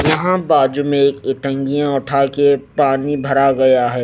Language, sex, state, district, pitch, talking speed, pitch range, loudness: Hindi, male, Haryana, Rohtak, 140 Hz, 150 wpm, 135-145 Hz, -15 LUFS